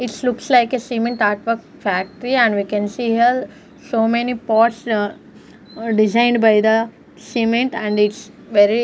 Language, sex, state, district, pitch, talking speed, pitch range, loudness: English, female, Punjab, Fazilka, 230 Hz, 150 wpm, 215-240 Hz, -18 LUFS